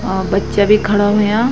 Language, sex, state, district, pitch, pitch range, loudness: Garhwali, female, Uttarakhand, Tehri Garhwal, 205 Hz, 205-210 Hz, -14 LUFS